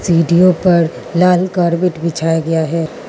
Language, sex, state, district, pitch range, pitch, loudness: Hindi, female, Mizoram, Aizawl, 165-180 Hz, 170 Hz, -14 LUFS